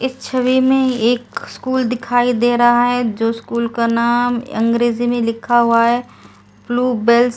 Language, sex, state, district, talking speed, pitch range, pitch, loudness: Hindi, female, Delhi, New Delhi, 170 wpm, 235-245 Hz, 240 Hz, -16 LUFS